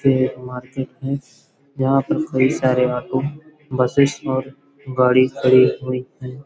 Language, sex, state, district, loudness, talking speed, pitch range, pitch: Hindi, male, Uttar Pradesh, Hamirpur, -19 LUFS, 150 wpm, 130-140 Hz, 130 Hz